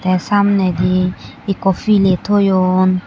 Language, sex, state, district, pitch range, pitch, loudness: Chakma, female, Tripura, West Tripura, 185-200 Hz, 185 Hz, -15 LUFS